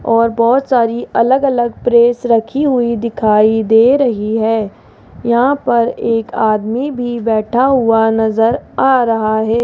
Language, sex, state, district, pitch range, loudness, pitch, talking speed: Hindi, female, Rajasthan, Jaipur, 225-245 Hz, -13 LUFS, 235 Hz, 145 wpm